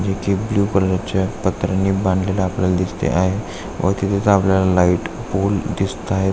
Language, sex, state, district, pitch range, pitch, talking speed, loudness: Marathi, male, Maharashtra, Aurangabad, 95-100 Hz, 95 Hz, 140 wpm, -19 LUFS